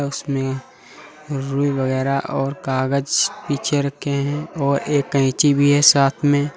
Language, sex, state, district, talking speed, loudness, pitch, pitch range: Hindi, male, Uttar Pradesh, Lalitpur, 135 wpm, -19 LUFS, 140 Hz, 135-145 Hz